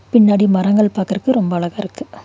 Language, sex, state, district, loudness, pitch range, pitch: Tamil, female, Tamil Nadu, Nilgiris, -15 LUFS, 190-215 Hz, 205 Hz